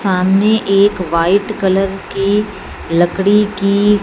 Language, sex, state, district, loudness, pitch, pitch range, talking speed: Hindi, female, Punjab, Fazilka, -14 LUFS, 195 Hz, 190-205 Hz, 105 wpm